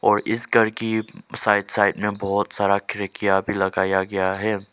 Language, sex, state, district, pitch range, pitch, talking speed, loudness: Hindi, male, Arunachal Pradesh, Lower Dibang Valley, 95-110 Hz, 100 Hz, 180 wpm, -22 LUFS